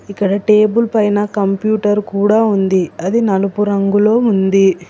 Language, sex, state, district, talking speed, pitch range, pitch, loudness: Telugu, female, Telangana, Hyderabad, 125 wpm, 195-215 Hz, 205 Hz, -14 LUFS